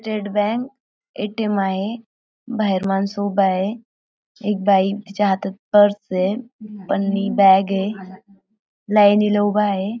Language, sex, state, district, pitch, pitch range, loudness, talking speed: Marathi, female, Maharashtra, Aurangabad, 205 Hz, 195-215 Hz, -19 LUFS, 120 wpm